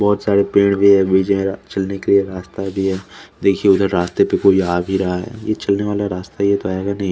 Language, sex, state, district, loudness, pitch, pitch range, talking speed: Hindi, male, Chandigarh, Chandigarh, -17 LUFS, 100 Hz, 95-100 Hz, 260 wpm